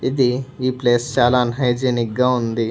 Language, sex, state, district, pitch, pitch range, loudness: Telugu, male, Telangana, Hyderabad, 125 Hz, 120-130 Hz, -18 LUFS